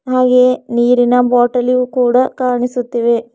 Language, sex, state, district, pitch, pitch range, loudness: Kannada, female, Karnataka, Bidar, 245 Hz, 245-250 Hz, -13 LUFS